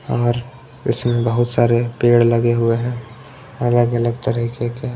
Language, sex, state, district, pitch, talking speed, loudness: Hindi, male, Punjab, Pathankot, 120 Hz, 145 wpm, -18 LUFS